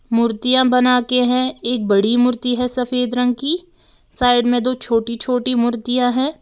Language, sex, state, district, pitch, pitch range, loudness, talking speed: Hindi, female, Uttar Pradesh, Lalitpur, 245 Hz, 240-250 Hz, -17 LUFS, 160 wpm